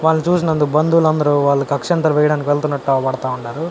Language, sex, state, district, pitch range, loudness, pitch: Telugu, male, Andhra Pradesh, Anantapur, 140-160 Hz, -16 LUFS, 150 Hz